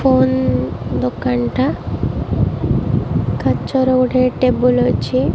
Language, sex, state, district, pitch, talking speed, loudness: Odia, female, Odisha, Malkangiri, 130 Hz, 80 wpm, -17 LUFS